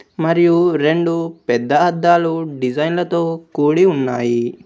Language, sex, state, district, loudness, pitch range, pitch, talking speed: Telugu, male, Telangana, Komaram Bheem, -16 LUFS, 145-170 Hz, 165 Hz, 90 wpm